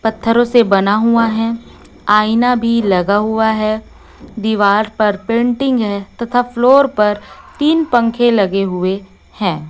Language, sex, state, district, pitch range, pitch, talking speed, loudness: Hindi, female, Chhattisgarh, Raipur, 205-240 Hz, 220 Hz, 135 wpm, -14 LUFS